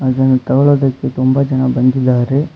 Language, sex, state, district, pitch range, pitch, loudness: Kannada, male, Karnataka, Bangalore, 130-135 Hz, 130 Hz, -13 LUFS